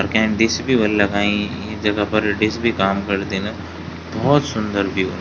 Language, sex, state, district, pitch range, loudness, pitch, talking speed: Garhwali, male, Uttarakhand, Tehri Garhwal, 95-110 Hz, -19 LUFS, 105 Hz, 185 wpm